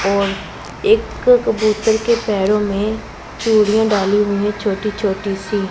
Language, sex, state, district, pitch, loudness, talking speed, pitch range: Hindi, female, Punjab, Pathankot, 210 Hz, -17 LUFS, 135 wpm, 200-220 Hz